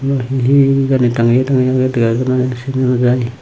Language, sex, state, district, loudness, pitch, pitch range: Chakma, male, Tripura, Unakoti, -14 LUFS, 130 Hz, 125-135 Hz